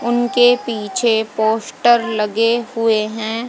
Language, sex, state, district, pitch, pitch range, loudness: Hindi, female, Haryana, Jhajjar, 230 Hz, 220-240 Hz, -16 LUFS